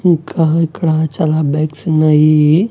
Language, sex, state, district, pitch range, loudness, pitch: Telugu, male, Andhra Pradesh, Annamaya, 155-165 Hz, -13 LUFS, 155 Hz